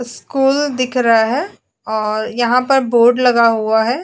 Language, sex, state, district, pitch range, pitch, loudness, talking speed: Hindi, female, Goa, North and South Goa, 225-260 Hz, 245 Hz, -15 LUFS, 150 wpm